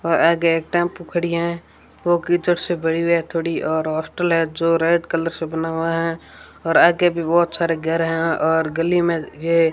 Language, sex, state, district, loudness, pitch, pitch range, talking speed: Hindi, female, Rajasthan, Bikaner, -19 LUFS, 165 Hz, 165-170 Hz, 210 wpm